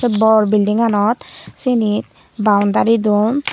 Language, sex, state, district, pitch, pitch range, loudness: Chakma, female, Tripura, Unakoti, 215 Hz, 210-230 Hz, -15 LUFS